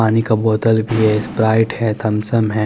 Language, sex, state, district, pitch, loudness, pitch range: Hindi, male, Chandigarh, Chandigarh, 110 Hz, -16 LUFS, 110-115 Hz